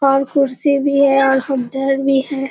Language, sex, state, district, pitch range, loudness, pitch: Hindi, female, Bihar, Kishanganj, 270-280 Hz, -15 LUFS, 275 Hz